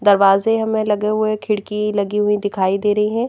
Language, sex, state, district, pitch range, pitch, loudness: Hindi, female, Madhya Pradesh, Bhopal, 205-215 Hz, 210 Hz, -18 LUFS